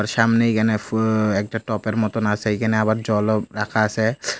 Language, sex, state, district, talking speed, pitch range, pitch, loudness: Bengali, male, Tripura, Unakoti, 165 wpm, 105-110 Hz, 110 Hz, -20 LUFS